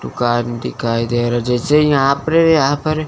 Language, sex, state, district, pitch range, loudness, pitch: Hindi, male, Chandigarh, Chandigarh, 120-150 Hz, -15 LUFS, 135 Hz